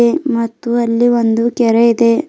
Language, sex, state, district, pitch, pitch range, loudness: Kannada, female, Karnataka, Bidar, 235 Hz, 230-240 Hz, -13 LUFS